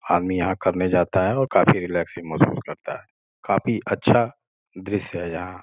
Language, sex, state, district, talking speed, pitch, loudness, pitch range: Hindi, male, Uttar Pradesh, Gorakhpur, 170 wpm, 95 Hz, -22 LUFS, 90-100 Hz